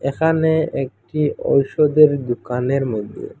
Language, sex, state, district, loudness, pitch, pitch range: Bengali, male, Assam, Hailakandi, -18 LUFS, 140 Hz, 125-155 Hz